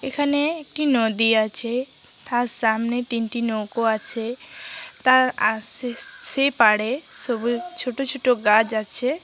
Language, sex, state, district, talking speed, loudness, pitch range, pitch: Bengali, female, West Bengal, Jhargram, 130 wpm, -21 LUFS, 225-270 Hz, 240 Hz